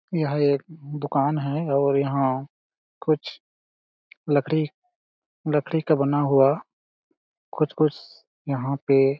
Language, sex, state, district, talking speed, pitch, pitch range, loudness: Hindi, male, Chhattisgarh, Balrampur, 105 wpm, 145 Hz, 140-155 Hz, -23 LUFS